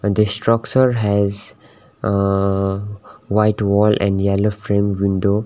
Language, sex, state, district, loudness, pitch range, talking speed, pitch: English, male, Sikkim, Gangtok, -18 LUFS, 100-105 Hz, 110 wpm, 100 Hz